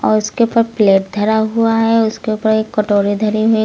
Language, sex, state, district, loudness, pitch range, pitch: Hindi, female, Uttar Pradesh, Lucknow, -14 LUFS, 210-225 Hz, 220 Hz